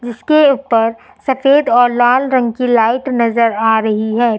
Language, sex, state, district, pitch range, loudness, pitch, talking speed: Hindi, female, Uttar Pradesh, Lucknow, 230-260 Hz, -13 LUFS, 240 Hz, 165 wpm